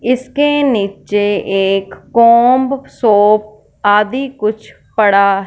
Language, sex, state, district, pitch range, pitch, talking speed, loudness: Hindi, female, Punjab, Fazilka, 205-250 Hz, 215 Hz, 85 wpm, -13 LUFS